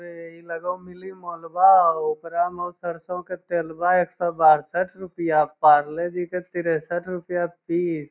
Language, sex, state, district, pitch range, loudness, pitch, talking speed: Magahi, male, Bihar, Lakhisarai, 165-180 Hz, -22 LUFS, 175 Hz, 180 wpm